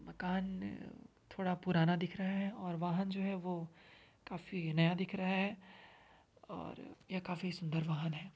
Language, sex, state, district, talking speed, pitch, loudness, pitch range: Hindi, female, Uttar Pradesh, Varanasi, 160 wpm, 180 Hz, -38 LUFS, 175-190 Hz